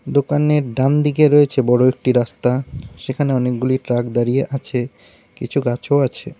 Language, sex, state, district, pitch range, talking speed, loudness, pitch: Bengali, male, West Bengal, Cooch Behar, 125-145 Hz, 140 wpm, -17 LUFS, 135 Hz